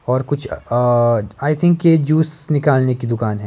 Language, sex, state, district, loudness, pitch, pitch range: Hindi, male, Himachal Pradesh, Shimla, -16 LUFS, 130 Hz, 120-155 Hz